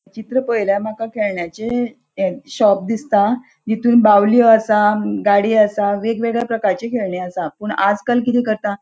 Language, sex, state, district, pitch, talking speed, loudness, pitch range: Konkani, female, Goa, North and South Goa, 215 Hz, 145 wpm, -17 LUFS, 200-235 Hz